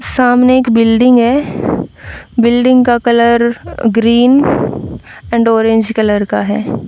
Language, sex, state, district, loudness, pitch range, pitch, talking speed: Hindi, female, Haryana, Rohtak, -11 LUFS, 225-245 Hz, 235 Hz, 115 wpm